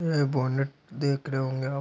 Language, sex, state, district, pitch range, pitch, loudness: Hindi, male, Uttar Pradesh, Gorakhpur, 130-140 Hz, 140 Hz, -28 LUFS